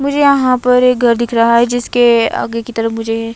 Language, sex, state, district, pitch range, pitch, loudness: Hindi, female, Himachal Pradesh, Shimla, 230-250 Hz, 240 Hz, -12 LUFS